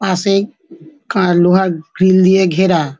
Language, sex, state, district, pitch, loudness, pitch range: Bengali, female, West Bengal, North 24 Parganas, 185 Hz, -13 LUFS, 175-190 Hz